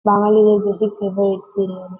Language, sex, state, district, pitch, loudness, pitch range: Bengali, female, West Bengal, North 24 Parganas, 205 Hz, -17 LUFS, 195-210 Hz